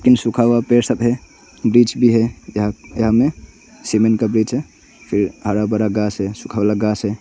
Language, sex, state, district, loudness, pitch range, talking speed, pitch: Hindi, male, Arunachal Pradesh, Longding, -17 LUFS, 105-120 Hz, 210 wpm, 110 Hz